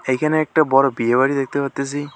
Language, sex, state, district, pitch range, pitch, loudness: Bengali, male, West Bengal, Alipurduar, 135-145 Hz, 140 Hz, -18 LUFS